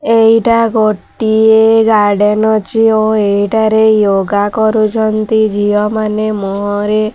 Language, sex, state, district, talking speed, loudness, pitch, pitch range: Odia, female, Odisha, Sambalpur, 90 wpm, -11 LUFS, 215 Hz, 210-220 Hz